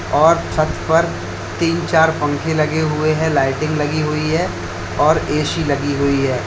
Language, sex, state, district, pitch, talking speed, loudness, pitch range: Hindi, male, Uttar Pradesh, Lalitpur, 150 Hz, 165 wpm, -17 LUFS, 135-155 Hz